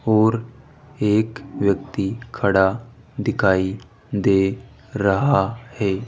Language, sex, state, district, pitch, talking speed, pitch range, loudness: Hindi, male, Rajasthan, Jaipur, 110 Hz, 80 wpm, 100-120 Hz, -21 LUFS